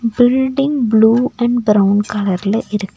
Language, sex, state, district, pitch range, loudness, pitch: Tamil, female, Tamil Nadu, Nilgiris, 210-245 Hz, -14 LUFS, 225 Hz